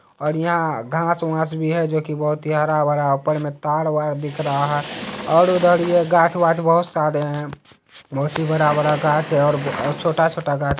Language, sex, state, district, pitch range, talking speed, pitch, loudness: Hindi, male, Bihar, Araria, 150-165 Hz, 200 wpm, 155 Hz, -19 LUFS